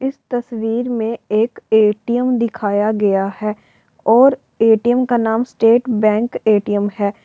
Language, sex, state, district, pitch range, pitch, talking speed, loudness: Hindi, female, Uttar Pradesh, Varanasi, 210-240 Hz, 225 Hz, 130 wpm, -16 LUFS